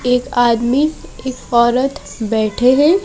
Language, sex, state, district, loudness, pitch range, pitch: Hindi, female, Madhya Pradesh, Bhopal, -15 LUFS, 235-270 Hz, 250 Hz